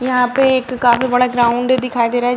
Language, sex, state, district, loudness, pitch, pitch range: Hindi, female, Bihar, Jamui, -15 LUFS, 250 Hz, 245-255 Hz